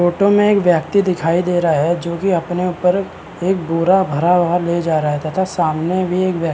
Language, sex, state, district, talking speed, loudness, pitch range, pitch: Hindi, male, Uttarakhand, Uttarkashi, 240 wpm, -16 LUFS, 165-185 Hz, 175 Hz